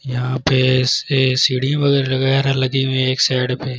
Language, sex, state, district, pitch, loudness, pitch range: Hindi, male, Delhi, New Delhi, 130 Hz, -16 LUFS, 130-135 Hz